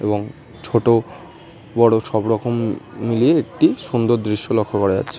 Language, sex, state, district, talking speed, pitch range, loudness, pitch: Bengali, male, West Bengal, North 24 Parganas, 125 wpm, 105-120 Hz, -18 LUFS, 115 Hz